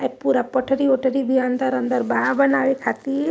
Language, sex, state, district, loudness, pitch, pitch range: Hindi, male, Uttar Pradesh, Varanasi, -20 LUFS, 260 Hz, 255-275 Hz